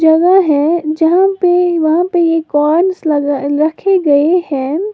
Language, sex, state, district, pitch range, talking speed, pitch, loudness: Hindi, female, Uttar Pradesh, Lalitpur, 300-360 Hz, 145 wpm, 325 Hz, -12 LUFS